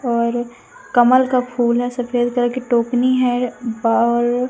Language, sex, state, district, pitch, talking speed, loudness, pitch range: Hindi, female, Madhya Pradesh, Umaria, 245 Hz, 160 wpm, -17 LUFS, 235-250 Hz